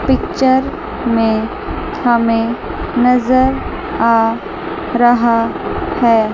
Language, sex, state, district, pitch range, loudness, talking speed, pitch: Hindi, male, Chandigarh, Chandigarh, 230-270 Hz, -15 LUFS, 65 wpm, 240 Hz